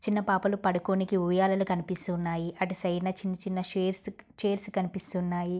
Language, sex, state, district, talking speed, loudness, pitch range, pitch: Telugu, female, Andhra Pradesh, Guntur, 150 wpm, -30 LUFS, 180-195 Hz, 185 Hz